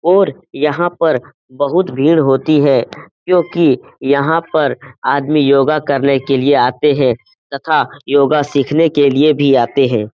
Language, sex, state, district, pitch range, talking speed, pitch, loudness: Hindi, male, Bihar, Jamui, 135-155 Hz, 150 wpm, 145 Hz, -13 LUFS